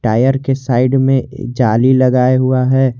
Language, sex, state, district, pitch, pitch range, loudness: Hindi, male, Jharkhand, Garhwa, 130 Hz, 125-130 Hz, -13 LUFS